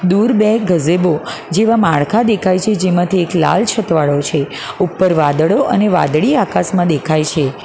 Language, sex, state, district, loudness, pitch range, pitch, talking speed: Gujarati, female, Gujarat, Valsad, -14 LUFS, 155-210 Hz, 180 Hz, 155 wpm